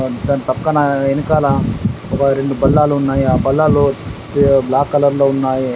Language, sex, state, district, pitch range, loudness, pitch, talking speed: Telugu, male, Telangana, Adilabad, 135-145 Hz, -15 LUFS, 135 Hz, 125 wpm